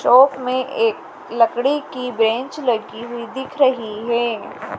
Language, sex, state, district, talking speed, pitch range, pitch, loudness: Hindi, female, Madhya Pradesh, Dhar, 140 wpm, 235-265 Hz, 250 Hz, -19 LUFS